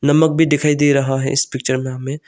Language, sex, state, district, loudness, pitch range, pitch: Hindi, male, Arunachal Pradesh, Longding, -16 LUFS, 135-150 Hz, 140 Hz